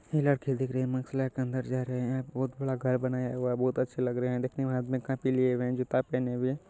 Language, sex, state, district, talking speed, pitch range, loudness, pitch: Hindi, male, Bihar, Begusarai, 295 wpm, 125-130 Hz, -31 LUFS, 130 Hz